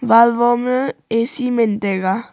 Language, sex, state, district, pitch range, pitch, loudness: Wancho, female, Arunachal Pradesh, Longding, 225-250 Hz, 235 Hz, -17 LUFS